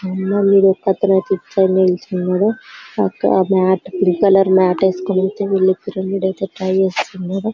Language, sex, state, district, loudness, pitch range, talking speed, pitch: Telugu, female, Telangana, Karimnagar, -16 LUFS, 185-195 Hz, 95 wpm, 190 Hz